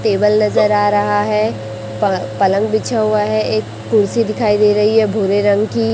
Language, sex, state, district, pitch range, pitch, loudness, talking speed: Hindi, female, Chhattisgarh, Raipur, 195-215 Hz, 210 Hz, -15 LUFS, 190 wpm